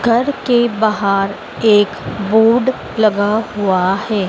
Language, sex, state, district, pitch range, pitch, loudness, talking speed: Hindi, female, Madhya Pradesh, Dhar, 200-230 Hz, 215 Hz, -15 LUFS, 110 wpm